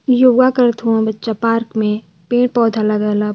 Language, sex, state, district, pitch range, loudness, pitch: Hindi, male, Uttar Pradesh, Varanasi, 215-245 Hz, -15 LUFS, 225 Hz